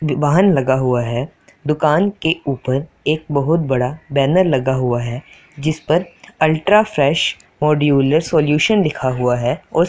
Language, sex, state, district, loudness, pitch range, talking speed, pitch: Hindi, male, Punjab, Pathankot, -17 LUFS, 135-165 Hz, 140 wpm, 150 Hz